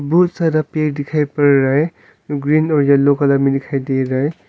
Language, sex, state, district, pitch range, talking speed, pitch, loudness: Hindi, male, Arunachal Pradesh, Longding, 140-155 Hz, 215 wpm, 145 Hz, -16 LUFS